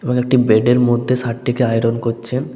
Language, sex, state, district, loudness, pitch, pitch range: Bengali, male, West Bengal, Paschim Medinipur, -16 LUFS, 120 Hz, 115-125 Hz